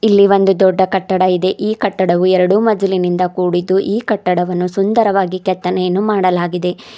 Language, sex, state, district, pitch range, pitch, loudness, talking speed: Kannada, female, Karnataka, Bidar, 180-200 Hz, 190 Hz, -14 LUFS, 130 wpm